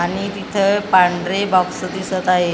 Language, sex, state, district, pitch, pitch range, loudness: Marathi, female, Maharashtra, Gondia, 185 Hz, 180-195 Hz, -17 LUFS